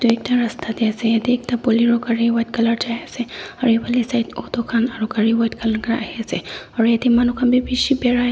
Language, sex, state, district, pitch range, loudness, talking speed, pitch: Nagamese, female, Nagaland, Dimapur, 230-245 Hz, -19 LUFS, 230 wpm, 235 Hz